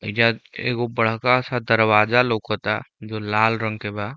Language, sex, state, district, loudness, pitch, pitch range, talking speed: Bhojpuri, male, Uttar Pradesh, Deoria, -21 LUFS, 110 Hz, 105-120 Hz, 160 wpm